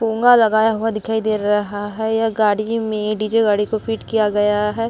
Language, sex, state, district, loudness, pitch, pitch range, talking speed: Hindi, female, Chhattisgarh, Sukma, -18 LUFS, 220 Hz, 210-225 Hz, 210 wpm